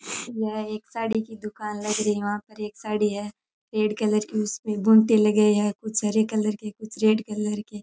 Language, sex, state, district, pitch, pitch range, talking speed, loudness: Rajasthani, male, Rajasthan, Churu, 215 Hz, 210-220 Hz, 230 wpm, -24 LUFS